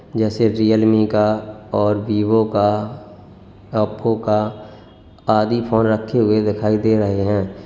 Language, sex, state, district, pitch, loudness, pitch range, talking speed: Hindi, male, Uttar Pradesh, Lalitpur, 105 Hz, -18 LUFS, 105-110 Hz, 115 wpm